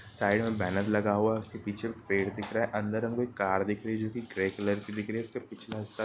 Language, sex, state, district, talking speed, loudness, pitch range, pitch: Hindi, male, Bihar, Sitamarhi, 300 wpm, -31 LUFS, 100-110 Hz, 105 Hz